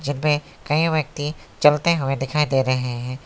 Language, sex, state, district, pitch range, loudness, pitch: Hindi, male, West Bengal, Alipurduar, 130-150 Hz, -21 LUFS, 145 Hz